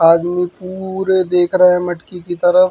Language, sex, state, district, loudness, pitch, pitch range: Bundeli, male, Uttar Pradesh, Hamirpur, -15 LUFS, 180 Hz, 175-185 Hz